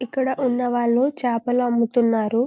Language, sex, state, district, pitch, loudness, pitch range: Telugu, female, Telangana, Karimnagar, 245 Hz, -21 LUFS, 235-250 Hz